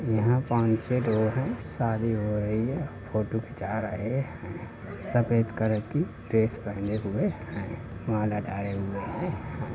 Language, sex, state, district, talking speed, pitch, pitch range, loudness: Hindi, male, Uttar Pradesh, Budaun, 150 wpm, 110 Hz, 105-115 Hz, -29 LUFS